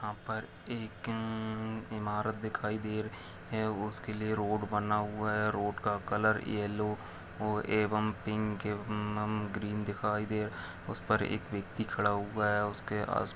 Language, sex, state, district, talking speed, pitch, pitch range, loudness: Hindi, male, Chhattisgarh, Bilaspur, 155 wpm, 105 Hz, 105-110 Hz, -34 LUFS